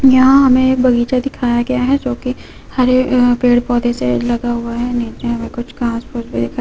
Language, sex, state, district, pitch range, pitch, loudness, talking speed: Hindi, female, West Bengal, Purulia, 240-255 Hz, 245 Hz, -15 LUFS, 210 wpm